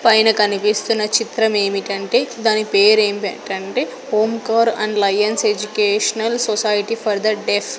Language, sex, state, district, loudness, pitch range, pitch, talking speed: Telugu, female, Andhra Pradesh, Sri Satya Sai, -17 LUFS, 205-225 Hz, 215 Hz, 115 wpm